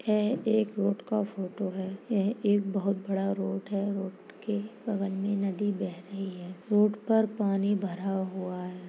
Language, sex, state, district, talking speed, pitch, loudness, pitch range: Hindi, female, Chhattisgarh, Bastar, 175 wpm, 200 Hz, -30 LUFS, 195-210 Hz